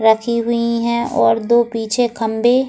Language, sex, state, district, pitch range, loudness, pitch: Hindi, female, Goa, North and South Goa, 225-235 Hz, -17 LUFS, 235 Hz